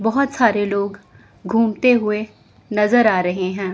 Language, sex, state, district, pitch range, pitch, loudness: Hindi, female, Chandigarh, Chandigarh, 200-230 Hz, 210 Hz, -18 LUFS